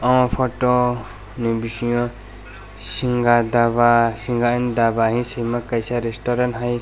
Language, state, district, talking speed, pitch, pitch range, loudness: Kokborok, Tripura, West Tripura, 130 wpm, 120 Hz, 115-120 Hz, -19 LUFS